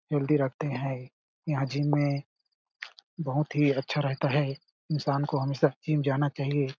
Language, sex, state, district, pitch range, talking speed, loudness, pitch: Hindi, male, Chhattisgarh, Balrampur, 135-150 Hz, 160 wpm, -29 LUFS, 145 Hz